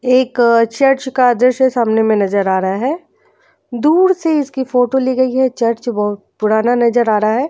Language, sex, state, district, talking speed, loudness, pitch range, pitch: Hindi, female, Uttar Pradesh, Jyotiba Phule Nagar, 190 wpm, -14 LUFS, 220-260 Hz, 245 Hz